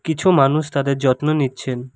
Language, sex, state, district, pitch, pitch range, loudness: Bengali, male, West Bengal, Alipurduar, 140 Hz, 130-155 Hz, -18 LUFS